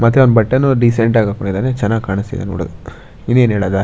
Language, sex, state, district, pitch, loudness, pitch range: Kannada, male, Karnataka, Shimoga, 115 Hz, -14 LUFS, 100-125 Hz